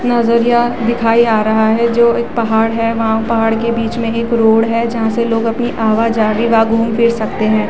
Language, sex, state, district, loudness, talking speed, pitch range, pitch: Hindi, female, Uttarakhand, Tehri Garhwal, -13 LUFS, 205 wpm, 225-235 Hz, 230 Hz